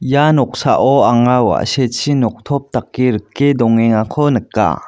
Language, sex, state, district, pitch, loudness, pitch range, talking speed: Garo, male, Meghalaya, West Garo Hills, 125 Hz, -14 LUFS, 120-140 Hz, 110 wpm